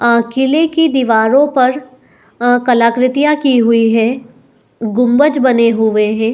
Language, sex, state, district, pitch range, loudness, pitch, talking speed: Hindi, female, Uttar Pradesh, Etah, 230-265 Hz, -12 LUFS, 245 Hz, 140 wpm